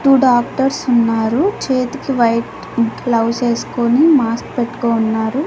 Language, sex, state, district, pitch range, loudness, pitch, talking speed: Telugu, female, Andhra Pradesh, Annamaya, 230-270 Hz, -16 LUFS, 240 Hz, 110 wpm